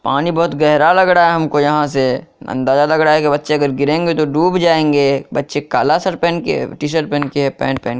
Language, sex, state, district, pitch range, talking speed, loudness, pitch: Hindi, male, Bihar, Kishanganj, 140-165 Hz, 240 wpm, -14 LUFS, 150 Hz